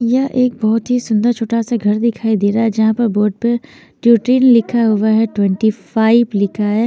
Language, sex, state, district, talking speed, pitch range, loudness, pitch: Hindi, female, Chandigarh, Chandigarh, 190 wpm, 215-235 Hz, -14 LUFS, 225 Hz